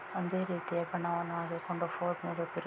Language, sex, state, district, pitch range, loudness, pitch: Kannada, female, Karnataka, Raichur, 170-175 Hz, -36 LUFS, 170 Hz